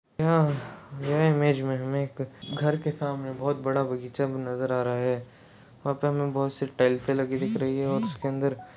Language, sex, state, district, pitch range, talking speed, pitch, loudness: Marathi, male, Maharashtra, Sindhudurg, 130-145 Hz, 190 wpm, 135 Hz, -28 LUFS